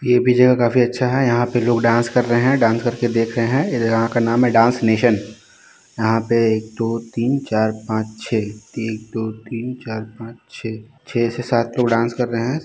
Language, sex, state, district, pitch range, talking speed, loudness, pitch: Hindi, male, Bihar, Muzaffarpur, 110-125 Hz, 215 wpm, -18 LUFS, 115 Hz